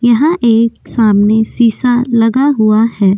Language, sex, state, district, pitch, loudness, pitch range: Hindi, female, Uttar Pradesh, Jyotiba Phule Nagar, 230 Hz, -11 LUFS, 220-245 Hz